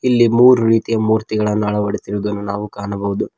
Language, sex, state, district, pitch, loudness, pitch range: Kannada, male, Karnataka, Koppal, 105 Hz, -16 LUFS, 105-115 Hz